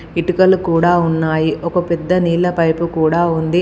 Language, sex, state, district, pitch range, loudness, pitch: Telugu, female, Telangana, Komaram Bheem, 160-175 Hz, -15 LUFS, 170 Hz